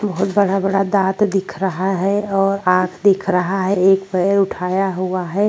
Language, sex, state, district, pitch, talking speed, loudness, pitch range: Hindi, female, Uttar Pradesh, Jyotiba Phule Nagar, 195 Hz, 175 wpm, -17 LUFS, 185-195 Hz